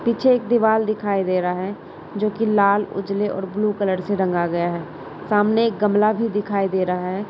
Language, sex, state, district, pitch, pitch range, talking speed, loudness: Hindi, female, Uttar Pradesh, Hamirpur, 205 Hz, 185-215 Hz, 205 wpm, -20 LUFS